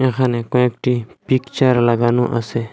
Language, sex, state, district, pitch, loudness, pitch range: Bengali, male, Assam, Hailakandi, 125 Hz, -17 LUFS, 120-130 Hz